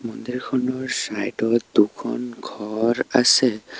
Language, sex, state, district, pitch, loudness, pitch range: Assamese, male, Assam, Sonitpur, 120 Hz, -21 LUFS, 115-125 Hz